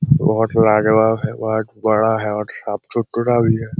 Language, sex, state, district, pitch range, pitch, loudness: Hindi, male, Jharkhand, Jamtara, 110-120 Hz, 110 Hz, -17 LUFS